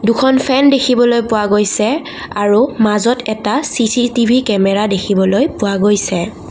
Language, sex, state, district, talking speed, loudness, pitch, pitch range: Assamese, female, Assam, Kamrup Metropolitan, 120 wpm, -13 LUFS, 225 Hz, 205-255 Hz